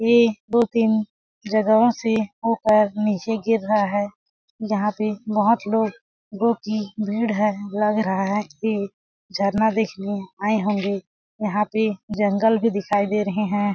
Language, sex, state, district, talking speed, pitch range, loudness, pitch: Hindi, female, Chhattisgarh, Balrampur, 155 wpm, 205-220 Hz, -22 LUFS, 215 Hz